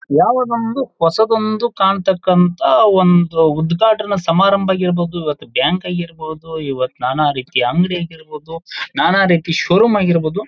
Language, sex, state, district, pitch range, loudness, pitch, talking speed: Kannada, male, Karnataka, Bijapur, 165-205 Hz, -15 LUFS, 175 Hz, 115 wpm